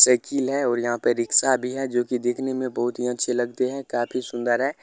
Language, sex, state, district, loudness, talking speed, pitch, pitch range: Hindi, male, Bihar, Sitamarhi, -23 LUFS, 250 wpm, 125 Hz, 120-130 Hz